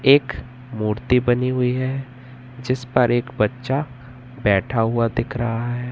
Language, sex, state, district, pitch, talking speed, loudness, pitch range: Hindi, female, Madhya Pradesh, Katni, 125 Hz, 140 wpm, -21 LUFS, 115-125 Hz